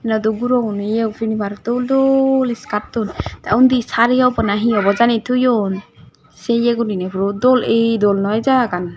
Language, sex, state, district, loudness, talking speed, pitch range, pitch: Chakma, female, Tripura, Dhalai, -16 LUFS, 180 wpm, 205-245 Hz, 225 Hz